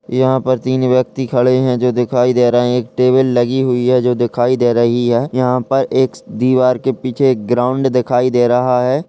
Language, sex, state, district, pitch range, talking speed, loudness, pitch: Hindi, male, Uttar Pradesh, Ghazipur, 125-130 Hz, 210 wpm, -14 LUFS, 125 Hz